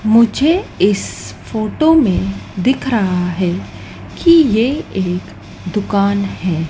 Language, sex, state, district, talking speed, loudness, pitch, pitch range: Hindi, female, Madhya Pradesh, Dhar, 105 wpm, -15 LUFS, 200 Hz, 180-235 Hz